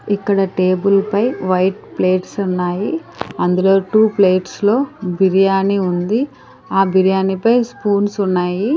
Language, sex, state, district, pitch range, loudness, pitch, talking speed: Telugu, female, Andhra Pradesh, Sri Satya Sai, 185-210 Hz, -16 LUFS, 195 Hz, 115 wpm